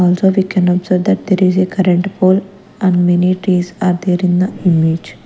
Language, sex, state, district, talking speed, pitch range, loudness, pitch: English, female, Punjab, Kapurthala, 205 wpm, 180-190 Hz, -14 LUFS, 185 Hz